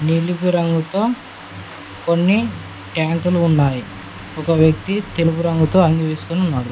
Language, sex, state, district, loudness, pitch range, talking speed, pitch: Telugu, male, Telangana, Mahabubabad, -18 LUFS, 140-175 Hz, 105 wpm, 165 Hz